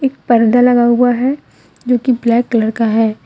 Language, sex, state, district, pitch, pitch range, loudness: Hindi, female, Jharkhand, Deoghar, 240 Hz, 230-250 Hz, -13 LUFS